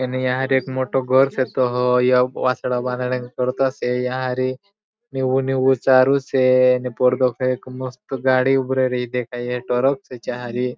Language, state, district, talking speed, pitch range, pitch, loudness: Bhili, Maharashtra, Dhule, 170 wpm, 125-130 Hz, 130 Hz, -20 LUFS